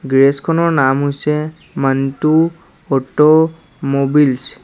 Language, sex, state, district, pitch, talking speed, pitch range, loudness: Assamese, male, Assam, Sonitpur, 150 Hz, 90 wpm, 135-160 Hz, -15 LUFS